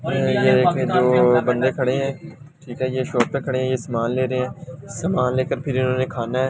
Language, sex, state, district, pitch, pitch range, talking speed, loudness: Hindi, male, Delhi, New Delhi, 130 Hz, 125-135 Hz, 250 wpm, -20 LUFS